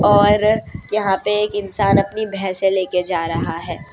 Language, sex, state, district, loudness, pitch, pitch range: Hindi, female, Gujarat, Valsad, -18 LUFS, 195 Hz, 180-210 Hz